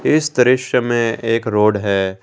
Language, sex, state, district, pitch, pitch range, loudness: Hindi, male, Jharkhand, Garhwa, 115 Hz, 105-125 Hz, -16 LUFS